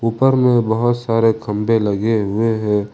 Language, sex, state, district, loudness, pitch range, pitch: Hindi, male, Jharkhand, Ranchi, -17 LUFS, 105-115 Hz, 115 Hz